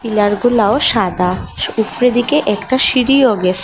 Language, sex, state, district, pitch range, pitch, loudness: Bengali, female, Assam, Hailakandi, 205-255 Hz, 230 Hz, -14 LUFS